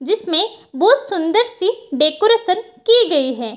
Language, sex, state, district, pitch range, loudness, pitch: Hindi, female, Bihar, Kishanganj, 310-450 Hz, -16 LUFS, 400 Hz